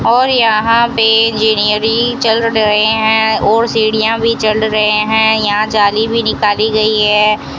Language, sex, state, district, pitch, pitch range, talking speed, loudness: Hindi, female, Rajasthan, Bikaner, 220 Hz, 215-225 Hz, 150 wpm, -11 LUFS